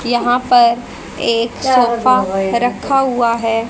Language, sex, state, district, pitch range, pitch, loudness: Hindi, female, Haryana, Charkhi Dadri, 230-250 Hz, 240 Hz, -14 LUFS